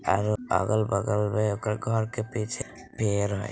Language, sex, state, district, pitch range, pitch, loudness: Bajjika, female, Bihar, Vaishali, 100-110 Hz, 105 Hz, -27 LUFS